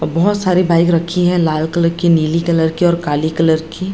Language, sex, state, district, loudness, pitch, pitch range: Hindi, female, Bihar, Jamui, -14 LUFS, 170 Hz, 160-175 Hz